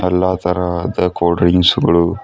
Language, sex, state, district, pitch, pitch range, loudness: Kannada, male, Karnataka, Bidar, 90 Hz, 85-90 Hz, -15 LUFS